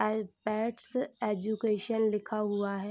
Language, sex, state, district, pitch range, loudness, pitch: Hindi, female, Bihar, Saharsa, 210-220 Hz, -32 LUFS, 215 Hz